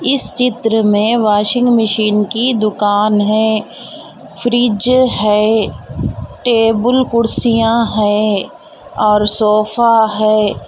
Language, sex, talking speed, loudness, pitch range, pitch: Hindi, female, 90 wpm, -13 LUFS, 210-235 Hz, 220 Hz